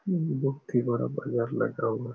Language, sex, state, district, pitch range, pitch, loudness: Hindi, male, Chhattisgarh, Raigarh, 120-150 Hz, 130 Hz, -29 LUFS